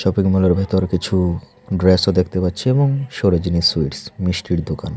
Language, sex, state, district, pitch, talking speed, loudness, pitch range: Bengali, male, Tripura, Unakoti, 95 Hz, 135 wpm, -18 LUFS, 90-95 Hz